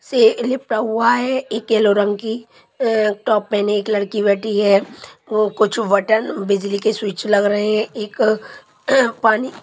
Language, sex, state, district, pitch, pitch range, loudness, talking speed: Hindi, female, Punjab, Pathankot, 215 Hz, 205-230 Hz, -18 LUFS, 135 wpm